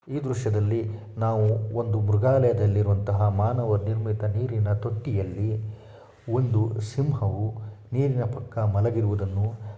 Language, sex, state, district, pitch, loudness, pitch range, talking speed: Kannada, male, Karnataka, Shimoga, 110 Hz, -25 LUFS, 105-120 Hz, 90 wpm